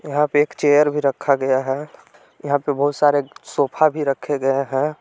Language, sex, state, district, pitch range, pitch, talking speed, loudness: Hindi, male, Jharkhand, Palamu, 135-150 Hz, 145 Hz, 215 wpm, -19 LUFS